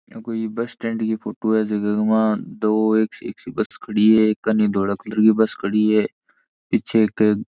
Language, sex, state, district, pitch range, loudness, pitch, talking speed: Marwari, male, Rajasthan, Churu, 105-110 Hz, -20 LUFS, 110 Hz, 215 wpm